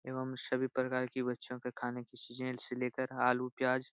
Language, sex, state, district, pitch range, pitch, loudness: Hindi, male, Bihar, Supaul, 125-130 Hz, 125 Hz, -37 LUFS